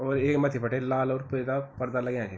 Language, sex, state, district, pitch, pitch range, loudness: Garhwali, male, Uttarakhand, Tehri Garhwal, 130 Hz, 125-135 Hz, -28 LUFS